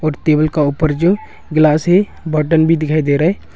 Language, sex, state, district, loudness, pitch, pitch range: Hindi, male, Arunachal Pradesh, Longding, -14 LUFS, 155 Hz, 155-165 Hz